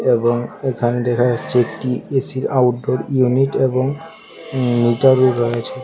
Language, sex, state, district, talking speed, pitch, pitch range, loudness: Bengali, male, Tripura, West Tripura, 115 wpm, 125 Hz, 120-130 Hz, -17 LUFS